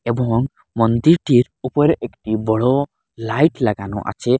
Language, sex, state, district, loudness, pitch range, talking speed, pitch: Bengali, male, Assam, Hailakandi, -18 LUFS, 115-135 Hz, 110 wpm, 120 Hz